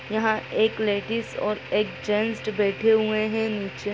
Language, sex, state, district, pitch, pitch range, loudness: Hindi, female, Bihar, Gaya, 215 Hz, 210-220 Hz, -24 LUFS